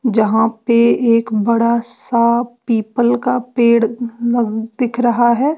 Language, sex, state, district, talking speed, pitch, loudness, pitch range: Hindi, female, Bihar, West Champaran, 130 wpm, 235 Hz, -15 LUFS, 230-240 Hz